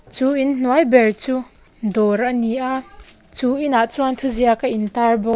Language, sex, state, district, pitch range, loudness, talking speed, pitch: Mizo, female, Mizoram, Aizawl, 230-265 Hz, -18 LUFS, 170 wpm, 250 Hz